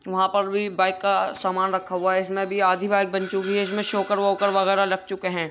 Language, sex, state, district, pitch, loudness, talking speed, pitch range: Hindi, male, Uttar Pradesh, Jyotiba Phule Nagar, 195 Hz, -22 LUFS, 250 wpm, 190-200 Hz